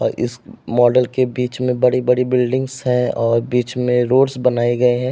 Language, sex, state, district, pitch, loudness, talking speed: Hindi, male, Uttar Pradesh, Jalaun, 125 Hz, -17 LUFS, 185 wpm